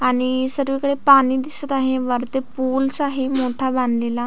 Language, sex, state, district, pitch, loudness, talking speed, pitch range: Marathi, female, Maharashtra, Solapur, 265 Hz, -19 LUFS, 140 wpm, 255-275 Hz